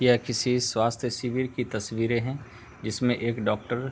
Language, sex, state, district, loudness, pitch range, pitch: Hindi, male, Uttar Pradesh, Hamirpur, -27 LUFS, 115-125 Hz, 120 Hz